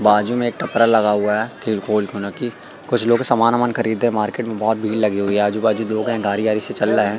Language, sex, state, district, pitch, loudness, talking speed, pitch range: Hindi, male, Madhya Pradesh, Katni, 110 Hz, -19 LUFS, 250 wpm, 105-115 Hz